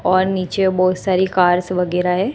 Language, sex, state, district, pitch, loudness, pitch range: Hindi, female, Gujarat, Gandhinagar, 185 Hz, -17 LUFS, 180-185 Hz